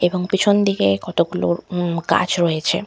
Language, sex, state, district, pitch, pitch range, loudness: Bengali, female, West Bengal, Malda, 175 Hz, 155-180 Hz, -19 LUFS